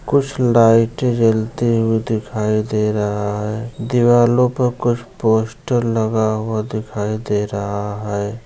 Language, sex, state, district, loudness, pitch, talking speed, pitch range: Hindi, male, Bihar, Muzaffarpur, -18 LUFS, 110 Hz, 130 wpm, 105-120 Hz